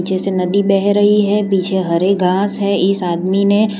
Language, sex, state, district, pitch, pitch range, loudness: Hindi, female, Gujarat, Valsad, 195 Hz, 185-200 Hz, -15 LUFS